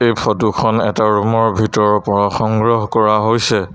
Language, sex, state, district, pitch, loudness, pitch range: Assamese, male, Assam, Sonitpur, 110 Hz, -15 LUFS, 105-115 Hz